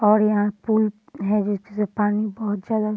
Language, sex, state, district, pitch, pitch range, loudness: Hindi, female, Bihar, Madhepura, 210 Hz, 205-215 Hz, -22 LUFS